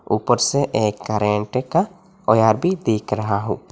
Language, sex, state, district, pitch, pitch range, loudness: Hindi, male, Assam, Hailakandi, 110 Hz, 105-165 Hz, -20 LUFS